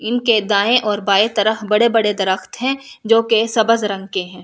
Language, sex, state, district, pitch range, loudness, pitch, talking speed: Hindi, female, Delhi, New Delhi, 205-230 Hz, -16 LUFS, 220 Hz, 200 wpm